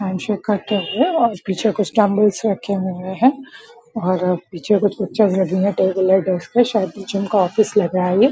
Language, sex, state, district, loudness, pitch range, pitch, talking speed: Hindi, female, Bihar, Purnia, -18 LUFS, 190-215 Hz, 200 Hz, 185 wpm